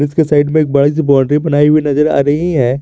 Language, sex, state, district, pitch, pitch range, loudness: Hindi, male, Jharkhand, Garhwa, 145 Hz, 140-155 Hz, -12 LUFS